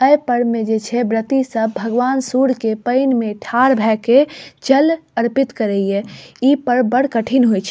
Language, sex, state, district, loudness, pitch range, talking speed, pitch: Maithili, female, Bihar, Saharsa, -16 LUFS, 225-265 Hz, 195 wpm, 245 Hz